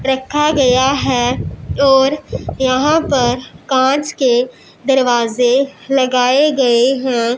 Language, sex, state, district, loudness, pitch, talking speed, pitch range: Hindi, male, Punjab, Pathankot, -14 LUFS, 265 Hz, 95 wpm, 250-275 Hz